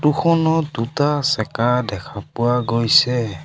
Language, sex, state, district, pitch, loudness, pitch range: Assamese, male, Assam, Sonitpur, 125 Hz, -18 LUFS, 115-150 Hz